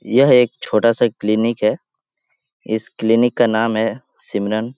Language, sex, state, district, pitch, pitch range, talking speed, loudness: Hindi, male, Bihar, Jahanabad, 115 Hz, 110-120 Hz, 150 wpm, -17 LUFS